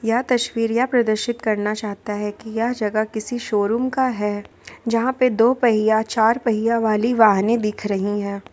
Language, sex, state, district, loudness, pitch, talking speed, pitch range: Hindi, female, Jharkhand, Ranchi, -20 LUFS, 225 Hz, 175 wpm, 210-240 Hz